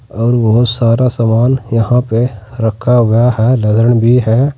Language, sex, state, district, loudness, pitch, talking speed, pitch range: Hindi, male, Uttar Pradesh, Saharanpur, -12 LUFS, 115 Hz, 145 wpm, 115-125 Hz